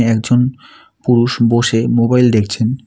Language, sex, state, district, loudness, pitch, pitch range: Bengali, male, West Bengal, Alipurduar, -14 LUFS, 120 Hz, 115-125 Hz